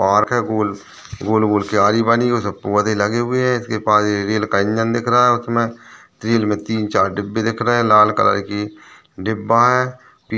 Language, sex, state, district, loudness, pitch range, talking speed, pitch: Hindi, male, Chhattisgarh, Balrampur, -17 LUFS, 105-120 Hz, 210 wpm, 110 Hz